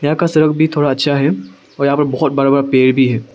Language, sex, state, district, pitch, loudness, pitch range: Hindi, male, Arunachal Pradesh, Longding, 140 Hz, -14 LUFS, 130-150 Hz